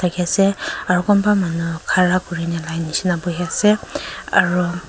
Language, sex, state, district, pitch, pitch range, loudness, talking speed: Nagamese, female, Nagaland, Kohima, 180 Hz, 170-190 Hz, -19 LUFS, 100 wpm